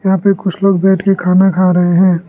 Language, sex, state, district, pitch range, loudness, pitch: Hindi, male, Arunachal Pradesh, Lower Dibang Valley, 180-195 Hz, -11 LUFS, 190 Hz